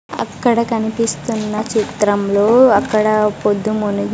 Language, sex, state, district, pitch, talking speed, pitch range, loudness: Telugu, female, Andhra Pradesh, Sri Satya Sai, 215 Hz, 85 wpm, 210-230 Hz, -16 LUFS